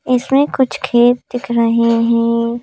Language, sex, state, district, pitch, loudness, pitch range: Hindi, female, Madhya Pradesh, Bhopal, 240 Hz, -14 LUFS, 230-255 Hz